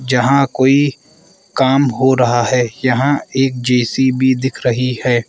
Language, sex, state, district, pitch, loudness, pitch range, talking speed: Hindi, male, Arunachal Pradesh, Lower Dibang Valley, 130 Hz, -14 LUFS, 125-135 Hz, 135 wpm